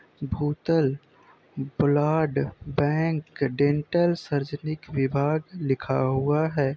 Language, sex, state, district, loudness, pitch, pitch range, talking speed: Hindi, male, Uttar Pradesh, Gorakhpur, -25 LUFS, 145 Hz, 140-155 Hz, 80 wpm